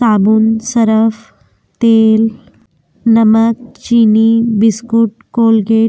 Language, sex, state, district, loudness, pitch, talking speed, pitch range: Hindi, female, Uttar Pradesh, Jyotiba Phule Nagar, -11 LUFS, 225 Hz, 80 wpm, 220-230 Hz